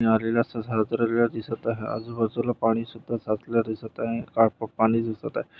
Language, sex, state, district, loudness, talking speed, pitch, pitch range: Marathi, male, Maharashtra, Nagpur, -26 LUFS, 85 wpm, 115 Hz, 110-115 Hz